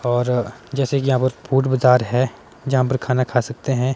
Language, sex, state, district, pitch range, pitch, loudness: Hindi, male, Himachal Pradesh, Shimla, 120-135 Hz, 130 Hz, -19 LUFS